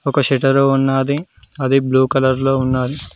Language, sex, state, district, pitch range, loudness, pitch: Telugu, male, Telangana, Mahabubabad, 130-135 Hz, -16 LUFS, 135 Hz